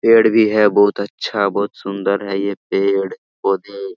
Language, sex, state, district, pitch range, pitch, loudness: Hindi, male, Jharkhand, Sahebganj, 100-105 Hz, 100 Hz, -17 LUFS